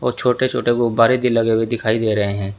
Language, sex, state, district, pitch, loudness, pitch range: Hindi, male, Uttar Pradesh, Saharanpur, 115 Hz, -17 LUFS, 110-125 Hz